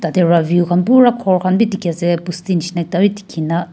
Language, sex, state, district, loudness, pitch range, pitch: Nagamese, female, Nagaland, Kohima, -15 LUFS, 170-190 Hz, 175 Hz